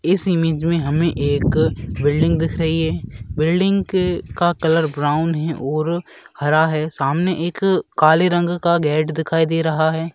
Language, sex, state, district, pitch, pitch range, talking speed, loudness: Hindi, male, Rajasthan, Churu, 160 Hz, 155-170 Hz, 155 wpm, -18 LUFS